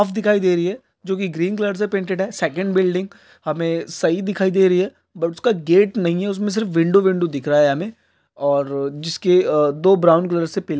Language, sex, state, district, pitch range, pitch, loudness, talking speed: Hindi, male, Chhattisgarh, Korba, 165-195 Hz, 180 Hz, -19 LUFS, 220 wpm